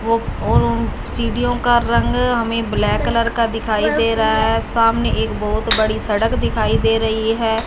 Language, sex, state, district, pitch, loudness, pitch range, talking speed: Hindi, female, Punjab, Fazilka, 225 Hz, -17 LUFS, 220-230 Hz, 165 wpm